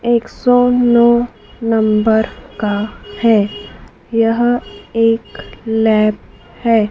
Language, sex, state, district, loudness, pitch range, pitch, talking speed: Hindi, female, Madhya Pradesh, Dhar, -15 LUFS, 215-235 Hz, 225 Hz, 85 wpm